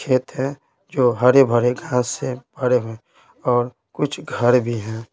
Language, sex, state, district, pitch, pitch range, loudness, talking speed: Hindi, male, Bihar, Patna, 125 Hz, 120-130 Hz, -20 LUFS, 175 wpm